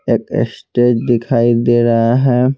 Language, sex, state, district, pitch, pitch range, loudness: Hindi, male, Bihar, Patna, 120 Hz, 115-125 Hz, -14 LUFS